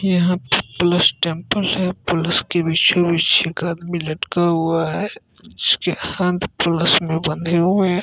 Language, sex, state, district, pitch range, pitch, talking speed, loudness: Hindi, male, Bihar, Gopalganj, 165-180 Hz, 170 Hz, 150 wpm, -18 LUFS